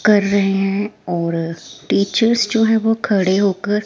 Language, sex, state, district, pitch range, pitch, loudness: Hindi, female, Himachal Pradesh, Shimla, 195-220 Hz, 200 Hz, -17 LUFS